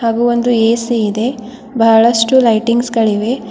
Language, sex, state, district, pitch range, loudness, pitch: Kannada, female, Karnataka, Bidar, 225-240 Hz, -13 LUFS, 235 Hz